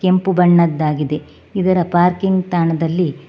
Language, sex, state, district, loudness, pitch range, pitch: Kannada, female, Karnataka, Bangalore, -16 LUFS, 165-185 Hz, 175 Hz